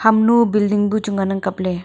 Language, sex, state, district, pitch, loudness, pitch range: Wancho, female, Arunachal Pradesh, Longding, 205 Hz, -17 LUFS, 195-220 Hz